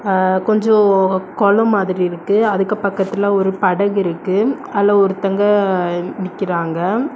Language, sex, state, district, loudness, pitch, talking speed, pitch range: Tamil, female, Tamil Nadu, Kanyakumari, -16 LUFS, 195 Hz, 110 wpm, 185-205 Hz